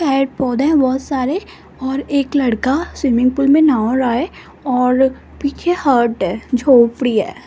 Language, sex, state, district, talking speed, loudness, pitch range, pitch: Hindi, female, Rajasthan, Jaipur, 145 wpm, -16 LUFS, 250-280 Hz, 265 Hz